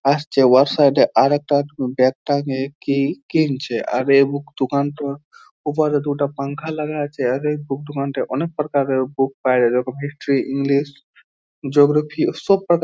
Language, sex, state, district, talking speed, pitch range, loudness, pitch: Bengali, male, West Bengal, Jhargram, 155 wpm, 135-145 Hz, -19 LUFS, 140 Hz